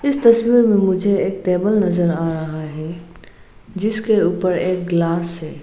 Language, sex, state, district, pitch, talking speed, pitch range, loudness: Hindi, female, Arunachal Pradesh, Lower Dibang Valley, 180 Hz, 150 wpm, 170-210 Hz, -18 LUFS